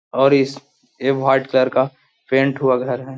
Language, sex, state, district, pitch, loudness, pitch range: Hindi, male, Bihar, Jahanabad, 135 Hz, -18 LUFS, 130-135 Hz